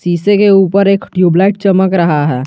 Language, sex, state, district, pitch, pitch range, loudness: Hindi, male, Jharkhand, Garhwa, 190 Hz, 175-195 Hz, -10 LUFS